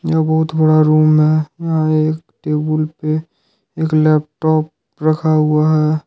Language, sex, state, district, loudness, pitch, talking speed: Hindi, male, Jharkhand, Ranchi, -15 LUFS, 155 Hz, 140 wpm